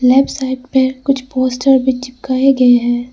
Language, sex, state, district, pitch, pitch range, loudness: Hindi, female, Arunachal Pradesh, Lower Dibang Valley, 260 Hz, 255-265 Hz, -14 LUFS